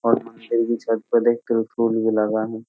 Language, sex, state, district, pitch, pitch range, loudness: Hindi, male, Uttar Pradesh, Jyotiba Phule Nagar, 115 Hz, 110-115 Hz, -21 LUFS